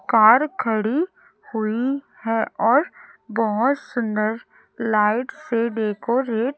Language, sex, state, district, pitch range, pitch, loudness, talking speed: Hindi, female, Chhattisgarh, Raipur, 220-260 Hz, 230 Hz, -21 LUFS, 90 wpm